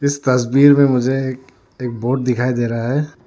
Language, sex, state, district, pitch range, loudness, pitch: Hindi, male, Arunachal Pradesh, Lower Dibang Valley, 120-135 Hz, -16 LUFS, 130 Hz